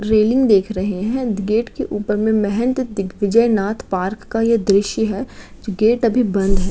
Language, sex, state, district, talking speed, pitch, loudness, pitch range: Hindi, female, Uttar Pradesh, Gorakhpur, 190 wpm, 215 Hz, -18 LUFS, 200-230 Hz